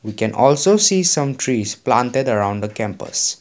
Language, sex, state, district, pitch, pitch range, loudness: English, male, Assam, Kamrup Metropolitan, 120 Hz, 105-140 Hz, -17 LUFS